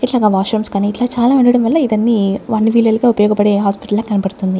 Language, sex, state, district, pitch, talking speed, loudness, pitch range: Telugu, female, Andhra Pradesh, Sri Satya Sai, 220 Hz, 170 wpm, -14 LUFS, 205-240 Hz